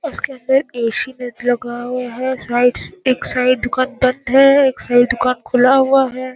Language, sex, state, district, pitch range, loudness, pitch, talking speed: Hindi, female, Bihar, Jamui, 245-265 Hz, -16 LUFS, 255 Hz, 180 wpm